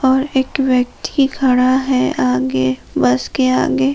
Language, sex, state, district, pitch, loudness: Hindi, female, Jharkhand, Palamu, 250 Hz, -16 LUFS